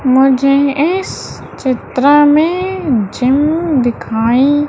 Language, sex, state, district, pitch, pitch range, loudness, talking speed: Hindi, female, Madhya Pradesh, Umaria, 275 Hz, 255-300 Hz, -12 LUFS, 75 wpm